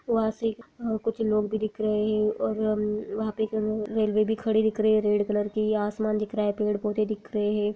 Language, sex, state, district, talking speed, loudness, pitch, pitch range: Hindi, female, Bihar, Gaya, 240 wpm, -27 LUFS, 215 Hz, 210-220 Hz